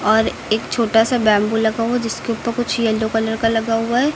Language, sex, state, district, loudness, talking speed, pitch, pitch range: Hindi, female, Uttar Pradesh, Lucknow, -18 LUFS, 245 wpm, 225 Hz, 220-235 Hz